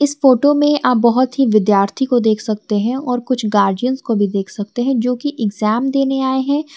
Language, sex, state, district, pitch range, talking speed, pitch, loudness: Hindi, female, Jharkhand, Garhwa, 215-265 Hz, 220 wpm, 245 Hz, -16 LUFS